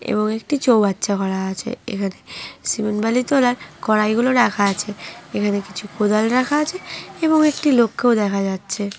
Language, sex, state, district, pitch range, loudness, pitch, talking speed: Bengali, female, West Bengal, Jhargram, 200-245 Hz, -19 LUFS, 215 Hz, 155 wpm